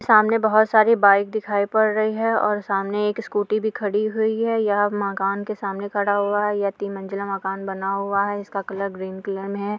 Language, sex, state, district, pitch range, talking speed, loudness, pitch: Hindi, female, Uttar Pradesh, Deoria, 200-215 Hz, 220 wpm, -21 LUFS, 205 Hz